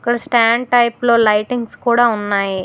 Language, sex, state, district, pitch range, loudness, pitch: Telugu, female, Telangana, Hyderabad, 215-240 Hz, -15 LUFS, 235 Hz